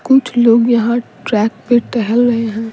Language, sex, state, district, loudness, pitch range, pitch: Hindi, female, Bihar, Patna, -14 LUFS, 225-240 Hz, 235 Hz